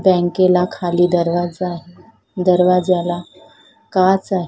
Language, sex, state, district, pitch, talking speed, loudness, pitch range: Marathi, female, Maharashtra, Solapur, 180 Hz, 80 wpm, -17 LUFS, 175-185 Hz